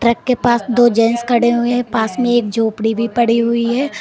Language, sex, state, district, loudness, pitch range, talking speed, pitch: Hindi, female, Uttar Pradesh, Lalitpur, -15 LUFS, 230-240 Hz, 240 wpm, 235 Hz